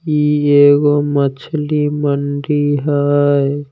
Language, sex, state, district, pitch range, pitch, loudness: Maithili, male, Bihar, Samastipur, 145-150 Hz, 145 Hz, -14 LUFS